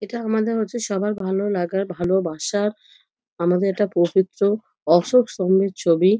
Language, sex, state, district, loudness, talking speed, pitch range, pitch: Bengali, female, West Bengal, North 24 Parganas, -21 LUFS, 125 wpm, 185-220 Hz, 195 Hz